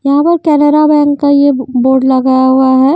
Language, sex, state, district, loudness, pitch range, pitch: Hindi, female, Haryana, Jhajjar, -9 LUFS, 260-295 Hz, 280 Hz